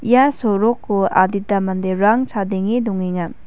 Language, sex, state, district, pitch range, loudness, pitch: Garo, female, Meghalaya, West Garo Hills, 190-230 Hz, -18 LUFS, 200 Hz